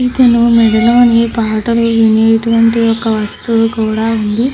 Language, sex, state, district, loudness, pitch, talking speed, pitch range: Telugu, female, Andhra Pradesh, Krishna, -11 LUFS, 230 Hz, 105 wpm, 225-230 Hz